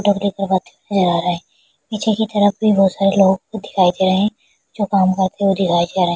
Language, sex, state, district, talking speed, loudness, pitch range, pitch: Hindi, female, Bihar, Kishanganj, 215 wpm, -17 LUFS, 185-205 Hz, 195 Hz